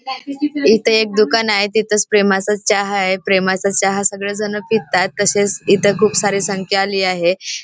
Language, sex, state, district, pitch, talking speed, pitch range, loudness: Marathi, female, Maharashtra, Chandrapur, 200 Hz, 150 wpm, 195-215 Hz, -15 LUFS